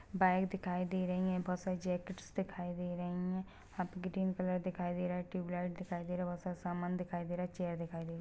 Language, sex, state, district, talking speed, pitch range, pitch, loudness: Hindi, female, Chhattisgarh, Rajnandgaon, 270 wpm, 175-185 Hz, 180 Hz, -39 LUFS